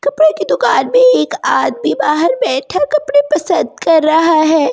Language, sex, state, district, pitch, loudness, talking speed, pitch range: Hindi, female, Delhi, New Delhi, 310 Hz, -12 LUFS, 175 wpm, 285-330 Hz